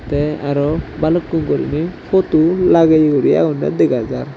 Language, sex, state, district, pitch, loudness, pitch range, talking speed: Chakma, male, Tripura, Dhalai, 160 Hz, -15 LUFS, 150-165 Hz, 125 wpm